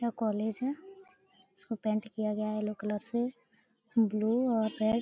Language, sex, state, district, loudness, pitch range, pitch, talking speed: Hindi, female, Bihar, Araria, -32 LUFS, 215-240 Hz, 225 Hz, 180 wpm